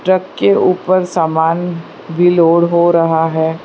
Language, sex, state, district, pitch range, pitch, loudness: Hindi, female, Gujarat, Valsad, 160-175 Hz, 170 Hz, -13 LUFS